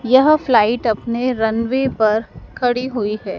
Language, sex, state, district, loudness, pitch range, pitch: Hindi, female, Madhya Pradesh, Dhar, -17 LUFS, 215-255 Hz, 235 Hz